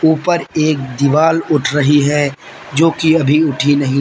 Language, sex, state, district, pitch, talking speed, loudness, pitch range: Hindi, male, Uttar Pradesh, Lalitpur, 150 Hz, 165 wpm, -14 LUFS, 145-160 Hz